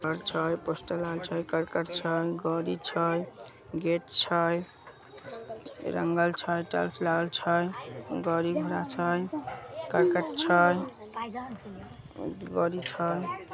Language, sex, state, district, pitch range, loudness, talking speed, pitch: Magahi, male, Bihar, Samastipur, 165-175 Hz, -29 LUFS, 105 wpm, 170 Hz